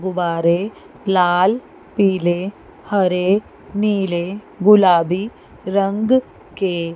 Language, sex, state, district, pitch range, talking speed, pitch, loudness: Hindi, female, Chandigarh, Chandigarh, 180-205 Hz, 70 wpm, 190 Hz, -18 LUFS